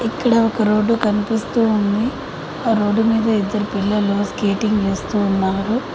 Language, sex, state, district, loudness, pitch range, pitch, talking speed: Telugu, female, Telangana, Mahabubabad, -18 LUFS, 205-225 Hz, 215 Hz, 130 wpm